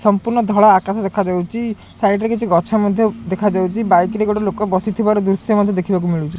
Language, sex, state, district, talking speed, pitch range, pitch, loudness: Odia, male, Odisha, Khordha, 180 wpm, 190-215 Hz, 205 Hz, -16 LUFS